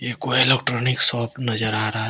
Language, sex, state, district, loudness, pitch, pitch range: Hindi, male, Jharkhand, Deoghar, -17 LUFS, 120 Hz, 110-130 Hz